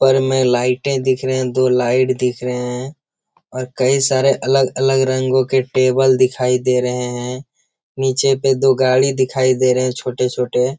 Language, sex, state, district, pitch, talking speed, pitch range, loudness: Hindi, male, Bihar, Jamui, 130 Hz, 170 wpm, 125-130 Hz, -16 LUFS